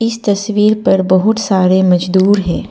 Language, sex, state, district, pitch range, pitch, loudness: Hindi, female, Arunachal Pradesh, Papum Pare, 185-215 Hz, 200 Hz, -12 LUFS